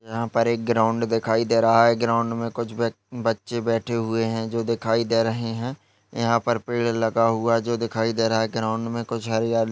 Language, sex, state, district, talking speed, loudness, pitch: Hindi, male, Rajasthan, Nagaur, 230 wpm, -23 LUFS, 115 Hz